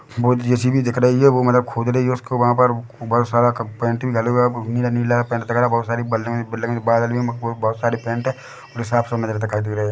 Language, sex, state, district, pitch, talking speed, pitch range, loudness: Hindi, male, Chhattisgarh, Bilaspur, 120 Hz, 120 wpm, 115-125 Hz, -19 LUFS